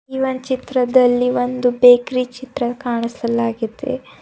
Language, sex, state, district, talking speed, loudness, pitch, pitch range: Kannada, female, Karnataka, Bidar, 100 wpm, -18 LUFS, 250 Hz, 240-260 Hz